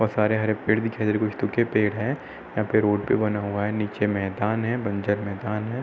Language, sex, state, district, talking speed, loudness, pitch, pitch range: Hindi, male, Uttar Pradesh, Hamirpur, 235 wpm, -25 LUFS, 105 Hz, 105-110 Hz